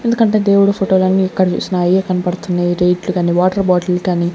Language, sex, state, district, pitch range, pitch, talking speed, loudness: Telugu, female, Andhra Pradesh, Sri Satya Sai, 180-195 Hz, 185 Hz, 165 wpm, -14 LUFS